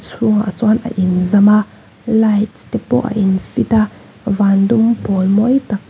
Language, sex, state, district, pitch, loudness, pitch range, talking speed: Mizo, female, Mizoram, Aizawl, 210 Hz, -14 LUFS, 200-230 Hz, 170 wpm